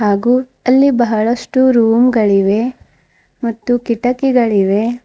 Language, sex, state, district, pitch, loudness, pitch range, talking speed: Kannada, female, Karnataka, Bidar, 240 Hz, -13 LUFS, 220-250 Hz, 85 wpm